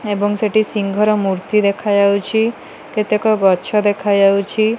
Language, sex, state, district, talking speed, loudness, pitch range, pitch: Odia, female, Odisha, Malkangiri, 115 wpm, -16 LUFS, 200-215 Hz, 205 Hz